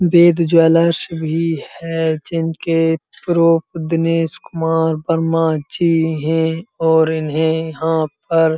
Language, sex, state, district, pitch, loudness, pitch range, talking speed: Hindi, male, Uttar Pradesh, Muzaffarnagar, 165 Hz, -17 LUFS, 160-165 Hz, 110 wpm